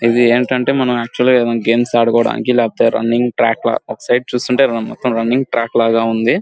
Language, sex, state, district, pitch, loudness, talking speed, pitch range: Telugu, male, Andhra Pradesh, Guntur, 120 Hz, -15 LUFS, 160 wpm, 115-125 Hz